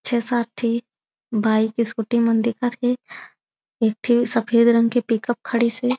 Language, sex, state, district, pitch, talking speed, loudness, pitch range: Chhattisgarhi, female, Chhattisgarh, Raigarh, 235 Hz, 150 wpm, -20 LUFS, 230-240 Hz